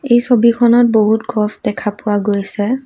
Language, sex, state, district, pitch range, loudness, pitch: Assamese, female, Assam, Kamrup Metropolitan, 210-240 Hz, -14 LUFS, 225 Hz